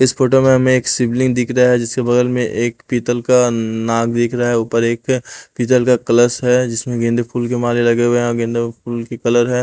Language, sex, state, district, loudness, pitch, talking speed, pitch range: Hindi, male, Punjab, Pathankot, -16 LUFS, 120 Hz, 245 wpm, 120-125 Hz